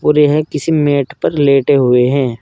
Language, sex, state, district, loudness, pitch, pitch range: Hindi, male, Uttar Pradesh, Saharanpur, -13 LUFS, 145 Hz, 135-150 Hz